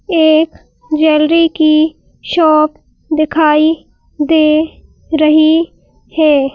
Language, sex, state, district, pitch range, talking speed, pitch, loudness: Hindi, female, Madhya Pradesh, Bhopal, 305-320 Hz, 75 wpm, 310 Hz, -12 LUFS